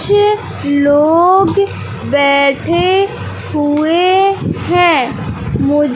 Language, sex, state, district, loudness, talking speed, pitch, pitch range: Hindi, male, Madhya Pradesh, Katni, -12 LUFS, 60 wpm, 340 Hz, 290-385 Hz